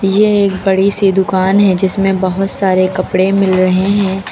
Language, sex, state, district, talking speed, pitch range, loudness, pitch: Hindi, female, Uttar Pradesh, Lucknow, 180 wpm, 185-195 Hz, -12 LUFS, 190 Hz